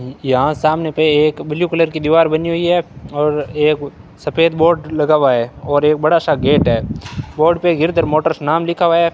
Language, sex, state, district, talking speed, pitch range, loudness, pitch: Hindi, male, Rajasthan, Bikaner, 210 wpm, 150-165 Hz, -15 LUFS, 155 Hz